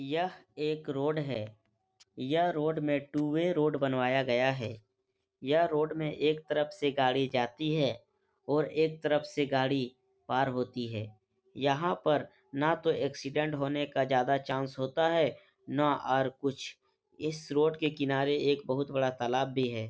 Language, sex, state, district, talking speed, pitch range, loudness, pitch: Hindi, male, Uttar Pradesh, Etah, 165 wpm, 130-150 Hz, -31 LUFS, 140 Hz